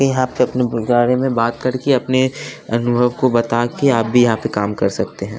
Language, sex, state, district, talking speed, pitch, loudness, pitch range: Hindi, male, Bihar, West Champaran, 235 wpm, 120 Hz, -17 LUFS, 115-130 Hz